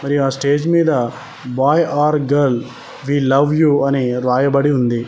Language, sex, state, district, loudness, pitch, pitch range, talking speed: Telugu, male, Telangana, Mahabubabad, -16 LUFS, 140 Hz, 125-145 Hz, 155 wpm